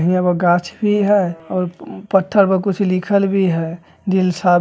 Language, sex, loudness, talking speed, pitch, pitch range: Bajjika, male, -17 LUFS, 180 wpm, 185 Hz, 175-195 Hz